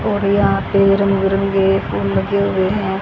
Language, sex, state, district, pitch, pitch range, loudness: Hindi, female, Haryana, Jhajjar, 195 Hz, 190-200 Hz, -16 LUFS